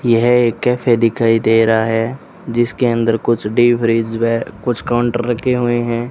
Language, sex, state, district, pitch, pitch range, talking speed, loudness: Hindi, male, Rajasthan, Bikaner, 120 Hz, 115-120 Hz, 145 wpm, -15 LUFS